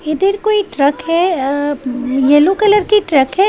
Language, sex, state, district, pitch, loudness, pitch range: Hindi, female, Bihar, West Champaran, 330 Hz, -13 LUFS, 280-400 Hz